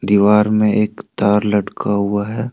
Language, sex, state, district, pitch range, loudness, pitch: Hindi, male, Jharkhand, Deoghar, 100-105 Hz, -16 LUFS, 105 Hz